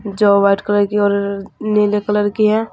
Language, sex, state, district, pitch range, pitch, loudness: Hindi, female, Uttar Pradesh, Saharanpur, 200-210 Hz, 205 Hz, -16 LUFS